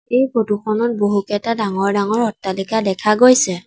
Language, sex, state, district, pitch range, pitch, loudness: Assamese, female, Assam, Sonitpur, 200-230 Hz, 210 Hz, -17 LUFS